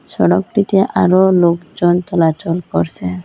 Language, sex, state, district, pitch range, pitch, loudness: Bengali, female, Assam, Hailakandi, 165-190 Hz, 175 Hz, -14 LUFS